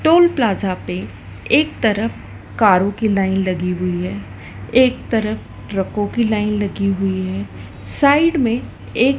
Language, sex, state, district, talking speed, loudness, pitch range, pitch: Hindi, female, Madhya Pradesh, Dhar, 145 wpm, -18 LUFS, 180-230 Hz, 200 Hz